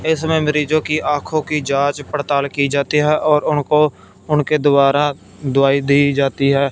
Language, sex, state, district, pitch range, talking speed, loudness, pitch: Hindi, male, Punjab, Fazilka, 140-150 Hz, 160 wpm, -16 LUFS, 145 Hz